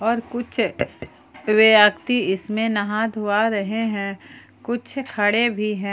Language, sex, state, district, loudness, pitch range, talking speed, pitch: Hindi, female, Jharkhand, Palamu, -20 LUFS, 205-230 Hz, 120 wpm, 215 Hz